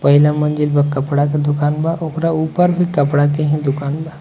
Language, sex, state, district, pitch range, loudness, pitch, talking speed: Bhojpuri, male, Bihar, Muzaffarpur, 145-160 Hz, -16 LUFS, 150 Hz, 215 wpm